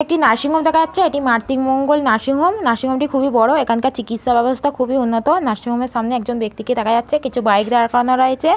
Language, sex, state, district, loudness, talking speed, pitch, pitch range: Bengali, female, West Bengal, Malda, -16 LUFS, 195 wpm, 255 Hz, 235-285 Hz